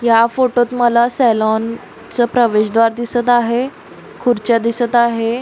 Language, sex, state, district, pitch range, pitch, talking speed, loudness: Marathi, female, Maharashtra, Solapur, 230-245 Hz, 240 Hz, 135 wpm, -15 LUFS